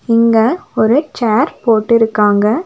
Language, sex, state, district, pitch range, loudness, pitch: Tamil, female, Tamil Nadu, Nilgiris, 220-260 Hz, -13 LUFS, 230 Hz